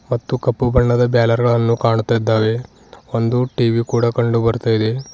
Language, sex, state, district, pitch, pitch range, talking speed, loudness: Kannada, male, Karnataka, Bidar, 120 Hz, 115-120 Hz, 130 wpm, -17 LUFS